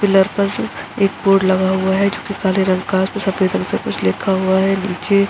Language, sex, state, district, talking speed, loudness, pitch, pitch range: Hindi, female, Uttar Pradesh, Jalaun, 270 wpm, -17 LUFS, 195 Hz, 190-200 Hz